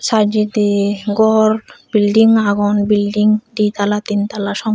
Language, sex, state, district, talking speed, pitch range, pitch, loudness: Chakma, female, Tripura, Unakoti, 140 wpm, 205-215 Hz, 210 Hz, -15 LUFS